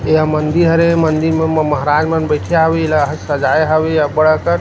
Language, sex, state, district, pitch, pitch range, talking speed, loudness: Chhattisgarhi, male, Chhattisgarh, Rajnandgaon, 155 Hz, 150-160 Hz, 220 wpm, -14 LUFS